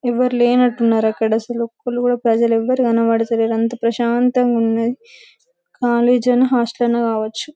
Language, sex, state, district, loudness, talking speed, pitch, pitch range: Telugu, female, Telangana, Karimnagar, -17 LUFS, 125 wpm, 240 Hz, 230-250 Hz